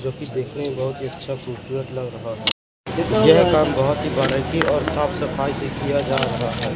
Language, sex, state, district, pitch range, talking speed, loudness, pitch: Hindi, male, Madhya Pradesh, Katni, 125-135 Hz, 215 wpm, -21 LUFS, 130 Hz